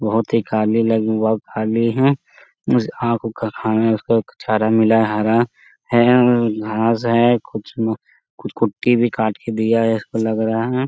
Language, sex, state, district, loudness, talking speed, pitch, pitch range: Hindi, male, Bihar, Jamui, -18 LUFS, 170 wpm, 115 Hz, 110-115 Hz